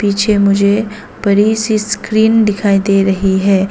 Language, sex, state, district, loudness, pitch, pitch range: Hindi, female, Arunachal Pradesh, Papum Pare, -12 LUFS, 205 Hz, 200-215 Hz